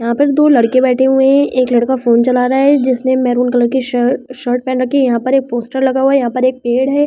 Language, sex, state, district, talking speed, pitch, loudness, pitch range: Hindi, female, Delhi, New Delhi, 295 wpm, 255 Hz, -13 LUFS, 245-265 Hz